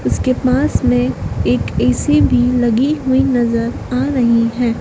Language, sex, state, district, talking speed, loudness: Hindi, female, Madhya Pradesh, Dhar, 150 wpm, -15 LUFS